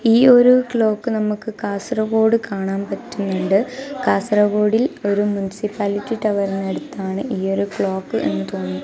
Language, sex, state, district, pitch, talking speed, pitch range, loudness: Malayalam, female, Kerala, Kasaragod, 205 Hz, 110 wpm, 195-225 Hz, -19 LUFS